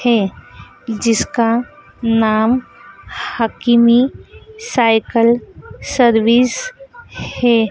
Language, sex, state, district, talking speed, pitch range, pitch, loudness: Hindi, female, Madhya Pradesh, Dhar, 55 wpm, 230-250 Hz, 235 Hz, -15 LUFS